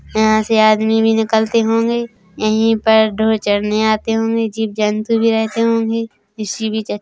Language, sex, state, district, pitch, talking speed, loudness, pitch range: Hindi, female, Chhattisgarh, Bilaspur, 220 Hz, 160 wpm, -15 LUFS, 215-225 Hz